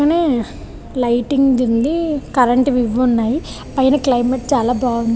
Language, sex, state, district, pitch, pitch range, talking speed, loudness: Telugu, female, Andhra Pradesh, Visakhapatnam, 255 Hz, 240-275 Hz, 105 wpm, -16 LUFS